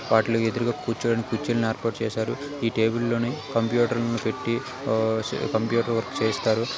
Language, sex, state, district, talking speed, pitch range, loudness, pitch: Telugu, male, Telangana, Karimnagar, 140 wpm, 110-120 Hz, -25 LUFS, 115 Hz